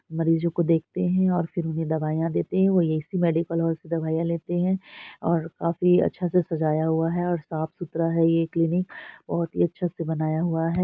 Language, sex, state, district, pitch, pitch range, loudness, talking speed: Hindi, female, Bihar, Saharsa, 165 Hz, 160-175 Hz, -25 LUFS, 200 wpm